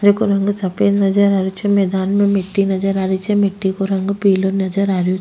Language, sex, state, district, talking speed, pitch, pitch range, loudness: Rajasthani, female, Rajasthan, Nagaur, 255 wpm, 195 Hz, 190-200 Hz, -16 LUFS